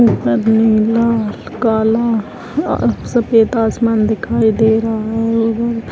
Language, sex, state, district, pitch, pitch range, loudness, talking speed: Hindi, female, Chhattisgarh, Raigarh, 225 Hz, 220-230 Hz, -15 LUFS, 110 wpm